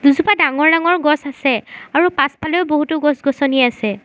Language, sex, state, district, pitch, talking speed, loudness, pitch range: Assamese, female, Assam, Sonitpur, 295 Hz, 150 wpm, -15 LUFS, 275-320 Hz